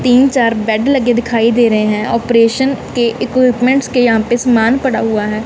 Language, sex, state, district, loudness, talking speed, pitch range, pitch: Hindi, female, Punjab, Kapurthala, -13 LUFS, 200 wpm, 225-255 Hz, 240 Hz